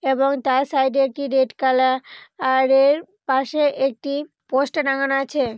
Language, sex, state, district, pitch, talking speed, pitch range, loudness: Bengali, female, West Bengal, Purulia, 275 Hz, 140 wpm, 265-285 Hz, -20 LUFS